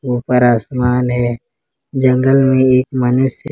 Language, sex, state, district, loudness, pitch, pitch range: Hindi, male, Jharkhand, Ranchi, -14 LUFS, 125 Hz, 125-130 Hz